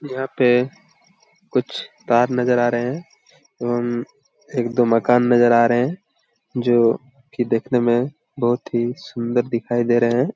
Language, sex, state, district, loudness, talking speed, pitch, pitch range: Hindi, male, Jharkhand, Jamtara, -20 LUFS, 155 wpm, 120 Hz, 120-130 Hz